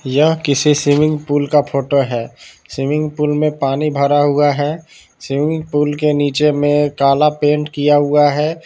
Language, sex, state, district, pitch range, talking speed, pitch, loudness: Hindi, male, Jharkhand, Palamu, 145-150 Hz, 165 wpm, 145 Hz, -15 LUFS